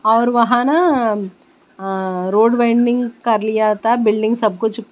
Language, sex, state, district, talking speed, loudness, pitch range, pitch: Hindi, female, Bihar, West Champaran, 145 wpm, -16 LUFS, 215-240 Hz, 225 Hz